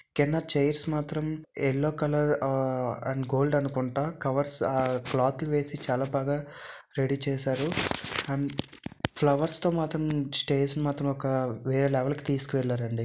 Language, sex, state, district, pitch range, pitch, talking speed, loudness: Telugu, male, Andhra Pradesh, Visakhapatnam, 135-150 Hz, 140 Hz, 130 wpm, -28 LUFS